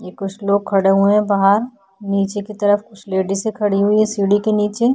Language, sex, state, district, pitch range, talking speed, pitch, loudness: Hindi, female, Uttar Pradesh, Budaun, 195-210 Hz, 230 wpm, 205 Hz, -17 LUFS